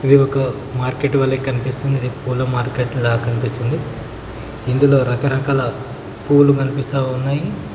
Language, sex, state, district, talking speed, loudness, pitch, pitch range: Telugu, male, Telangana, Mahabubabad, 110 wpm, -18 LUFS, 130 Hz, 125-135 Hz